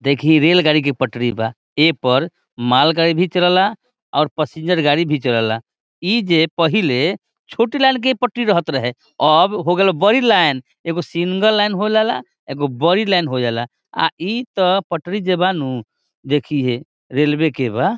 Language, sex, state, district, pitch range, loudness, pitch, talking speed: Bhojpuri, male, Bihar, Saran, 140-190 Hz, -17 LUFS, 165 Hz, 160 wpm